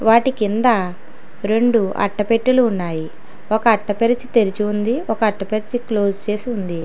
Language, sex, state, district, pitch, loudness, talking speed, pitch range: Telugu, female, Telangana, Hyderabad, 215 Hz, -18 LUFS, 120 wpm, 205-230 Hz